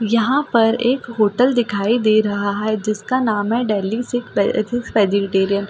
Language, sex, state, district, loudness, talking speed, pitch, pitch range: Hindi, female, Delhi, New Delhi, -18 LUFS, 160 wpm, 220 Hz, 205-240 Hz